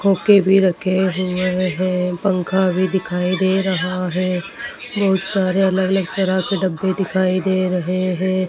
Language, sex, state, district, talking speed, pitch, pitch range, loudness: Hindi, female, Madhya Pradesh, Dhar, 150 wpm, 185 Hz, 185-190 Hz, -18 LUFS